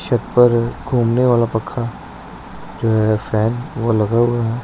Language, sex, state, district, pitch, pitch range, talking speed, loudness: Hindi, male, Punjab, Pathankot, 115 Hz, 110-120 Hz, 140 wpm, -17 LUFS